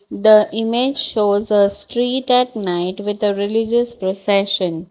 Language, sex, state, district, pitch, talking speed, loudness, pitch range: English, female, Gujarat, Valsad, 210 Hz, 135 wpm, -16 LUFS, 200-235 Hz